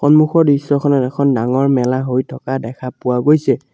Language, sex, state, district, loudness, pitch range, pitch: Assamese, male, Assam, Sonitpur, -15 LUFS, 125-145 Hz, 135 Hz